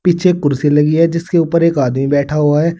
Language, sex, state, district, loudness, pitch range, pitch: Hindi, male, Uttar Pradesh, Saharanpur, -13 LUFS, 145-170 Hz, 155 Hz